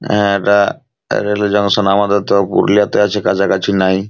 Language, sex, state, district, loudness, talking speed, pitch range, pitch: Bengali, male, West Bengal, Purulia, -14 LUFS, 130 wpm, 100-105 Hz, 100 Hz